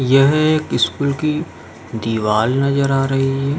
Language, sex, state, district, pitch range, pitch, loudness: Hindi, male, Uttar Pradesh, Jalaun, 115-140 Hz, 135 Hz, -17 LUFS